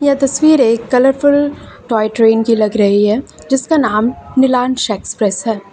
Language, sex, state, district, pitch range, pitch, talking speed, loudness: Hindi, female, Uttar Pradesh, Lucknow, 215-270 Hz, 245 Hz, 145 wpm, -13 LUFS